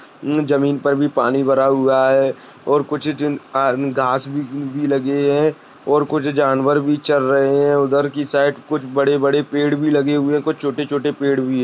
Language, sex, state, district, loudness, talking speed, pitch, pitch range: Hindi, male, Maharashtra, Sindhudurg, -17 LUFS, 200 wpm, 145 Hz, 135-145 Hz